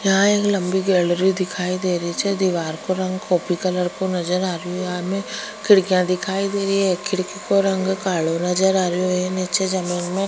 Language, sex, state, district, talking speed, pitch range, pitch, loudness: Rajasthani, female, Rajasthan, Churu, 190 wpm, 180-190 Hz, 185 Hz, -20 LUFS